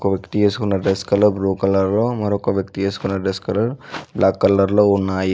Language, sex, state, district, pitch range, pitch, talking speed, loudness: Telugu, male, Telangana, Mahabubabad, 95-105 Hz, 100 Hz, 180 wpm, -18 LUFS